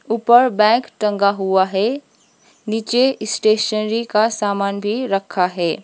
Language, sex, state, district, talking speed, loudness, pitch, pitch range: Hindi, female, Sikkim, Gangtok, 125 wpm, -17 LUFS, 215 Hz, 200-230 Hz